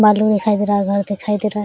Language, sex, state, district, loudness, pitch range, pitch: Hindi, female, Jharkhand, Sahebganj, -17 LUFS, 200-210 Hz, 210 Hz